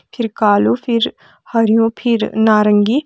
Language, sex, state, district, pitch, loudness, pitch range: Kumaoni, female, Uttarakhand, Tehri Garhwal, 225 Hz, -15 LUFS, 215-235 Hz